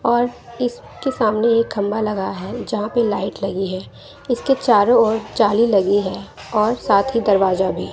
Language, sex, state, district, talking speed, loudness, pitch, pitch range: Hindi, female, Bihar, West Champaran, 175 wpm, -19 LUFS, 215 Hz, 195-235 Hz